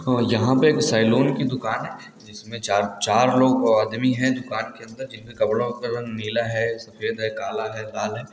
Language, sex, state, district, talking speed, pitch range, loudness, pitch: Hindi, male, Chhattisgarh, Balrampur, 215 wpm, 110-130 Hz, -22 LUFS, 115 Hz